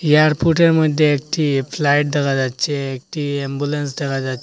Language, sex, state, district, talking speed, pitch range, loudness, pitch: Bengali, male, Assam, Hailakandi, 135 wpm, 135-155 Hz, -18 LUFS, 145 Hz